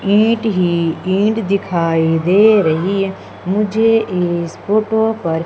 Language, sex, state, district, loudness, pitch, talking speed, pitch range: Hindi, female, Madhya Pradesh, Umaria, -15 LUFS, 195 Hz, 120 wpm, 170-215 Hz